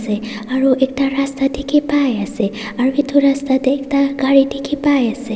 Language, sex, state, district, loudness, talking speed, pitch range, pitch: Nagamese, female, Nagaland, Dimapur, -16 LUFS, 135 wpm, 250-275 Hz, 270 Hz